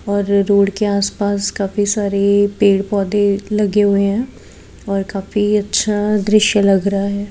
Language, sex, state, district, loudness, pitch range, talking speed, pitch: Hindi, female, Haryana, Rohtak, -16 LUFS, 200-210 Hz, 155 wpm, 200 Hz